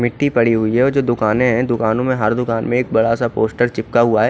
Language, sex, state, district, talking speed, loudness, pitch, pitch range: Hindi, male, Odisha, Khordha, 290 wpm, -16 LUFS, 120 Hz, 110-125 Hz